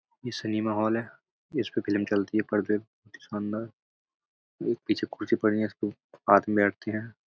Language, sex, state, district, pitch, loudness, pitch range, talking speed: Hindi, male, Uttar Pradesh, Budaun, 105 Hz, -28 LUFS, 105-110 Hz, 150 wpm